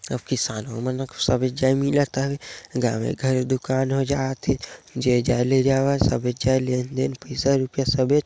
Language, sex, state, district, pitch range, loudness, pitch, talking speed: Chhattisgarhi, male, Chhattisgarh, Sarguja, 125-135 Hz, -23 LUFS, 130 Hz, 165 wpm